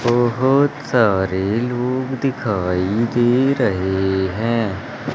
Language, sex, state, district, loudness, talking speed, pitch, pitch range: Hindi, male, Madhya Pradesh, Umaria, -18 LUFS, 80 wpm, 120 Hz, 95-130 Hz